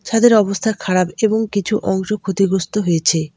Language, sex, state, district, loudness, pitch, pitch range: Bengali, female, West Bengal, Alipurduar, -17 LUFS, 195 Hz, 185-215 Hz